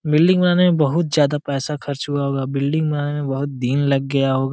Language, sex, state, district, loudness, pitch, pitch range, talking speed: Hindi, male, Jharkhand, Jamtara, -19 LUFS, 145 Hz, 135-150 Hz, 200 wpm